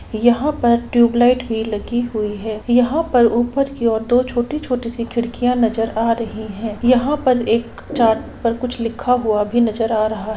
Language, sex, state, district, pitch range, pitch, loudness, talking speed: Hindi, female, Bihar, Saran, 225-245 Hz, 235 Hz, -18 LUFS, 190 wpm